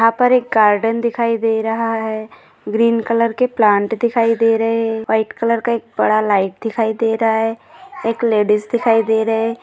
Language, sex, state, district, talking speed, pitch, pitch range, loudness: Hindi, female, Maharashtra, Nagpur, 200 wpm, 225 Hz, 220-230 Hz, -16 LUFS